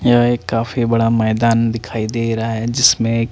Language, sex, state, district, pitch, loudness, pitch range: Hindi, male, Chandigarh, Chandigarh, 115 Hz, -16 LUFS, 115-120 Hz